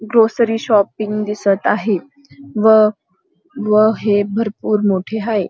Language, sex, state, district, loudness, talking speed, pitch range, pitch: Marathi, female, Maharashtra, Dhule, -16 LUFS, 110 wpm, 205-225 Hz, 215 Hz